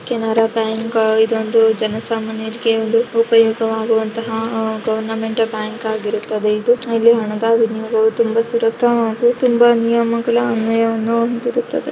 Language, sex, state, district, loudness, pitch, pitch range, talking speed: Kannada, female, Karnataka, Dakshina Kannada, -17 LUFS, 225 Hz, 220-230 Hz, 110 wpm